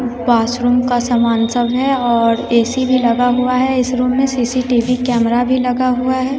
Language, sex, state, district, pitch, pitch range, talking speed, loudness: Hindi, female, Bihar, West Champaran, 245 Hz, 240-255 Hz, 190 wpm, -15 LUFS